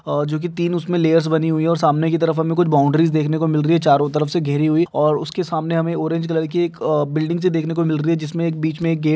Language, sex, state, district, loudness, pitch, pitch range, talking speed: Hindi, male, Jharkhand, Jamtara, -18 LUFS, 160 Hz, 155-165 Hz, 305 wpm